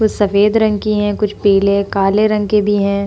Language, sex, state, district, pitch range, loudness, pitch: Hindi, female, Uttar Pradesh, Hamirpur, 200-210 Hz, -14 LUFS, 205 Hz